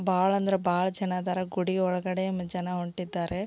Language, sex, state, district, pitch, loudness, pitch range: Kannada, female, Karnataka, Belgaum, 185 Hz, -28 LUFS, 180-190 Hz